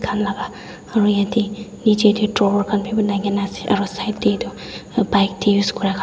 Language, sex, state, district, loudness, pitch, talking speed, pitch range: Nagamese, female, Nagaland, Dimapur, -19 LUFS, 205 Hz, 200 wpm, 200-215 Hz